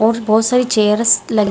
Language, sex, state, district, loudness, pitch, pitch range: Hindi, female, Bihar, Gaya, -14 LUFS, 220 Hz, 215-230 Hz